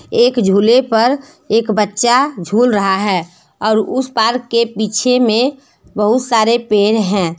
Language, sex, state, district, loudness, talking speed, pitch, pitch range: Hindi, female, Jharkhand, Deoghar, -14 LUFS, 145 wpm, 225 Hz, 205-245 Hz